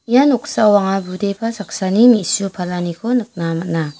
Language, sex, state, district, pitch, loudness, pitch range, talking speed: Garo, female, Meghalaya, West Garo Hills, 200 Hz, -16 LUFS, 180-230 Hz, 135 wpm